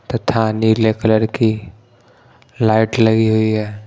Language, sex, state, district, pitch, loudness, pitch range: Hindi, male, Punjab, Pathankot, 110 Hz, -16 LUFS, 110-115 Hz